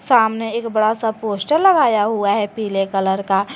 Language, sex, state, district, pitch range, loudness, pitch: Hindi, female, Jharkhand, Garhwa, 200-225 Hz, -17 LUFS, 215 Hz